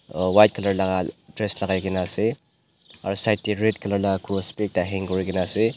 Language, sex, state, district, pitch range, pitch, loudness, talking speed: Nagamese, male, Nagaland, Dimapur, 95-105 Hz, 100 Hz, -23 LUFS, 200 wpm